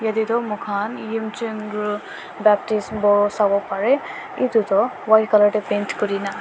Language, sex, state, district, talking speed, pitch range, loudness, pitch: Nagamese, male, Nagaland, Dimapur, 150 wpm, 205-220 Hz, -20 LUFS, 210 Hz